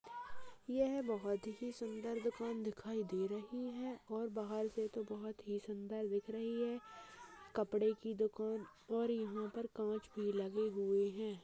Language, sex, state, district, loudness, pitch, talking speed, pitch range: Hindi, female, Uttarakhand, Uttarkashi, -41 LUFS, 220 Hz, 155 wpm, 210-235 Hz